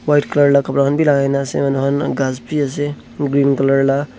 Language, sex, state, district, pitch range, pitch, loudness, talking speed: Nagamese, male, Nagaland, Dimapur, 135-145 Hz, 140 Hz, -16 LUFS, 245 wpm